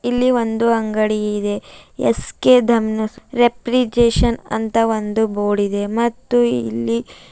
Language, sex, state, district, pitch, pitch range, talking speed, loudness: Kannada, female, Karnataka, Bidar, 225 Hz, 210-240 Hz, 105 wpm, -18 LUFS